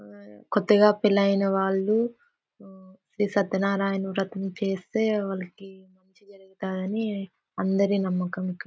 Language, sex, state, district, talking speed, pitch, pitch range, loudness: Telugu, female, Andhra Pradesh, Anantapur, 85 wpm, 195 Hz, 190-205 Hz, -25 LUFS